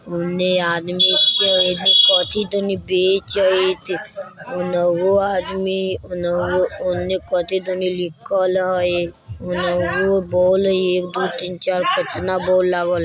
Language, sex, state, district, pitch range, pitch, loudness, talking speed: Bajjika, male, Bihar, Vaishali, 180-190 Hz, 185 Hz, -17 LUFS, 105 wpm